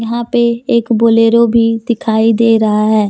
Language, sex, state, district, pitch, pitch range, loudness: Hindi, female, Jharkhand, Deoghar, 230 Hz, 225-235 Hz, -11 LUFS